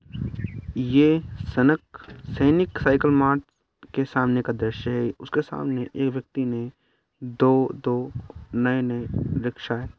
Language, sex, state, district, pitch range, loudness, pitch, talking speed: Hindi, male, Bihar, Madhepura, 120-135 Hz, -24 LUFS, 125 Hz, 125 wpm